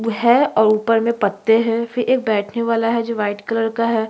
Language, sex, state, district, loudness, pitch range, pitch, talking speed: Hindi, female, Chhattisgarh, Kabirdham, -18 LUFS, 220-235 Hz, 230 Hz, 260 wpm